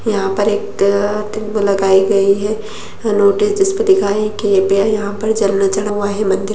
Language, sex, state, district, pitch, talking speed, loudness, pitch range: Kumaoni, female, Uttarakhand, Uttarkashi, 205 Hz, 175 wpm, -15 LUFS, 200-215 Hz